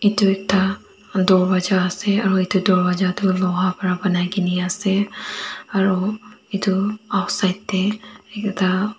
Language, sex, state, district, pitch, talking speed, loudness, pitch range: Nagamese, female, Nagaland, Dimapur, 190 Hz, 105 wpm, -20 LUFS, 185-205 Hz